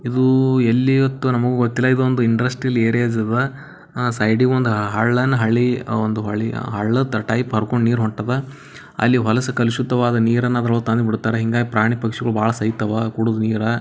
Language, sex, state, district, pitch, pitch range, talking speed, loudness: Kannada, male, Karnataka, Bijapur, 120 Hz, 110-125 Hz, 140 wpm, -19 LUFS